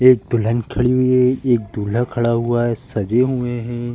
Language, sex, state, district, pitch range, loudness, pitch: Hindi, male, Bihar, Bhagalpur, 115-125 Hz, -18 LUFS, 120 Hz